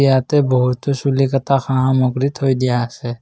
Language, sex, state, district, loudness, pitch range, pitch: Assamese, male, Assam, Kamrup Metropolitan, -17 LUFS, 125-135 Hz, 130 Hz